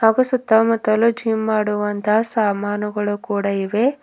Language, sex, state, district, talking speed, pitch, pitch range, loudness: Kannada, female, Karnataka, Bidar, 105 wpm, 215 Hz, 205-230 Hz, -19 LUFS